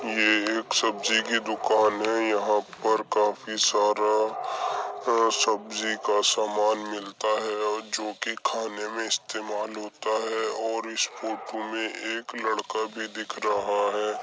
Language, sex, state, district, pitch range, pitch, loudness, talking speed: Hindi, male, Uttar Pradesh, Jyotiba Phule Nagar, 105-110 Hz, 110 Hz, -26 LUFS, 145 wpm